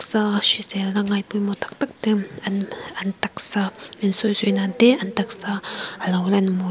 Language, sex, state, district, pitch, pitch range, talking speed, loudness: Mizo, female, Mizoram, Aizawl, 205 Hz, 195-215 Hz, 160 wpm, -21 LUFS